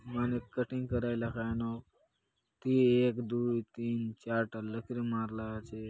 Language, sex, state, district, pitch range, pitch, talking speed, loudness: Halbi, male, Chhattisgarh, Bastar, 115-120 Hz, 115 Hz, 120 wpm, -34 LUFS